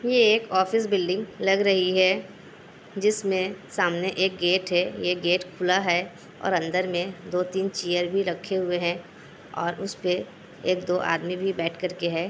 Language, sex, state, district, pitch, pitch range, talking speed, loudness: Hindi, female, Bihar, Kishanganj, 185 Hz, 175-195 Hz, 155 wpm, -25 LUFS